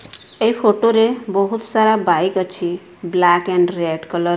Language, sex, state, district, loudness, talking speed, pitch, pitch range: Odia, female, Odisha, Sambalpur, -17 LUFS, 150 wpm, 185 Hz, 175-220 Hz